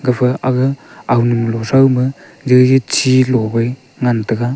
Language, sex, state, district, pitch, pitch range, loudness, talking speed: Wancho, male, Arunachal Pradesh, Longding, 125 Hz, 120-130 Hz, -14 LUFS, 105 wpm